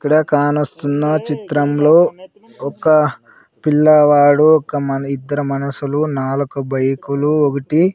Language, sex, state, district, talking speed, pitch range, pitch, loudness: Telugu, male, Andhra Pradesh, Sri Satya Sai, 90 wpm, 140-155 Hz, 145 Hz, -15 LUFS